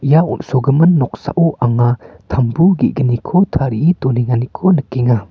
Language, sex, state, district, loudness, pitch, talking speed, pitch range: Garo, male, Meghalaya, North Garo Hills, -14 LUFS, 130 Hz, 100 wpm, 120-170 Hz